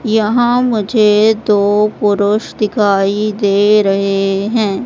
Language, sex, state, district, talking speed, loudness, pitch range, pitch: Hindi, female, Madhya Pradesh, Katni, 100 wpm, -13 LUFS, 200-220 Hz, 210 Hz